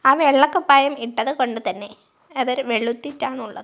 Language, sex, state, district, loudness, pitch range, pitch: Malayalam, female, Kerala, Kozhikode, -19 LUFS, 230-280 Hz, 260 Hz